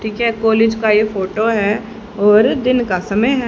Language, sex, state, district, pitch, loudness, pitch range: Hindi, female, Haryana, Jhajjar, 220 Hz, -15 LUFS, 210-230 Hz